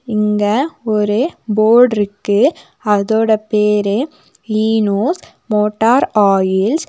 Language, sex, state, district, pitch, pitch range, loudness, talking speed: Tamil, female, Tamil Nadu, Nilgiris, 215 Hz, 210-230 Hz, -15 LUFS, 85 wpm